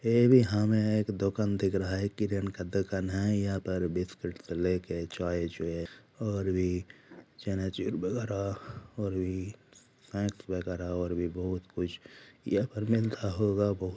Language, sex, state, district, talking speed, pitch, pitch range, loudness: Hindi, male, Jharkhand, Jamtara, 155 wpm, 95 Hz, 90-105 Hz, -31 LUFS